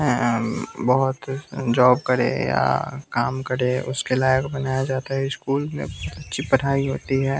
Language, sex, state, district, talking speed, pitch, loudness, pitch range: Hindi, male, Bihar, West Champaran, 160 wpm, 130 Hz, -22 LUFS, 125-135 Hz